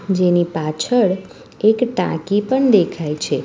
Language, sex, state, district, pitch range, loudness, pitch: Gujarati, female, Gujarat, Valsad, 170-220 Hz, -17 LUFS, 190 Hz